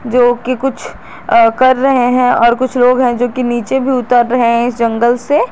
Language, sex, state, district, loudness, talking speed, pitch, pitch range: Hindi, female, Jharkhand, Garhwa, -12 LUFS, 230 wpm, 245 Hz, 240-260 Hz